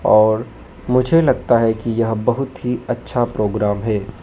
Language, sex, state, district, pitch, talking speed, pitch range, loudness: Hindi, male, Madhya Pradesh, Dhar, 115 Hz, 155 wpm, 105-125 Hz, -18 LUFS